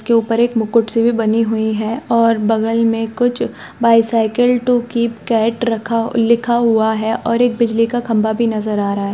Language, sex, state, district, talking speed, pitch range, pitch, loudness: Hindi, female, Bihar, Kishanganj, 205 wpm, 220-235 Hz, 230 Hz, -16 LUFS